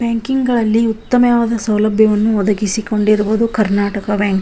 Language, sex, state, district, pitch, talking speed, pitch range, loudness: Kannada, female, Karnataka, Bijapur, 215 Hz, 120 wpm, 210-230 Hz, -15 LUFS